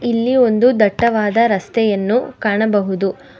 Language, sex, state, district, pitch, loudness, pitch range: Kannada, female, Karnataka, Bangalore, 220 Hz, -16 LUFS, 205-235 Hz